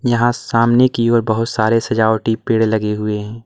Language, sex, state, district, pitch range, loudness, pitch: Hindi, male, Uttar Pradesh, Lalitpur, 110-120 Hz, -16 LUFS, 115 Hz